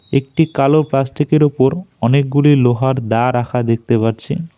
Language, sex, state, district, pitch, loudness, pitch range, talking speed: Bengali, male, West Bengal, Alipurduar, 135 Hz, -15 LUFS, 120-150 Hz, 145 wpm